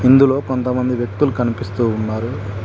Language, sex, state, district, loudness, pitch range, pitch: Telugu, male, Telangana, Mahabubabad, -18 LUFS, 110-130 Hz, 120 Hz